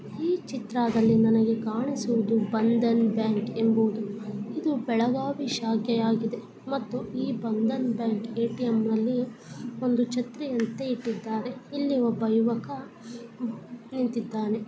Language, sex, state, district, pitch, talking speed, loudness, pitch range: Kannada, female, Karnataka, Gulbarga, 230 Hz, 100 wpm, -27 LUFS, 225-245 Hz